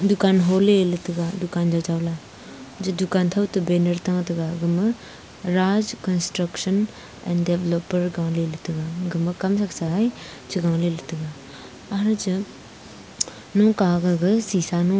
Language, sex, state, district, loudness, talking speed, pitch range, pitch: Wancho, female, Arunachal Pradesh, Longding, -23 LUFS, 125 wpm, 170-195 Hz, 180 Hz